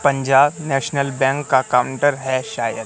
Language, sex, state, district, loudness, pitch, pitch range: Hindi, male, Madhya Pradesh, Katni, -18 LUFS, 135 Hz, 130-140 Hz